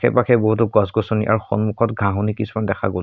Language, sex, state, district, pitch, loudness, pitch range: Assamese, male, Assam, Sonitpur, 110 Hz, -19 LUFS, 100-115 Hz